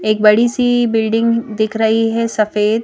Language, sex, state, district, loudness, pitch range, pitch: Hindi, female, Madhya Pradesh, Bhopal, -15 LUFS, 215-230 Hz, 225 Hz